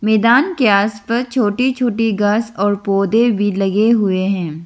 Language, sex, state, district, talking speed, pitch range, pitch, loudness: Hindi, female, Arunachal Pradesh, Lower Dibang Valley, 155 wpm, 200-235 Hz, 215 Hz, -15 LUFS